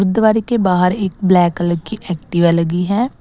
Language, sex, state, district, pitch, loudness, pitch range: Hindi, female, Assam, Sonitpur, 180 Hz, -16 LUFS, 175-215 Hz